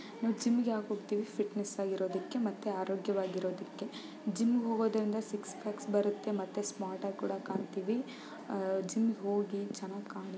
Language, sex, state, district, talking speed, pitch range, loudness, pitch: Kannada, female, Karnataka, Belgaum, 135 wpm, 195-220 Hz, -36 LUFS, 205 Hz